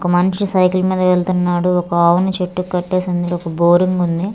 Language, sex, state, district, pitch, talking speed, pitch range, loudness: Telugu, female, Andhra Pradesh, Manyam, 180 Hz, 180 wpm, 175-185 Hz, -16 LUFS